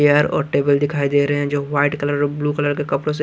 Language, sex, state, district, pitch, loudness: Hindi, male, Punjab, Kapurthala, 145 Hz, -19 LUFS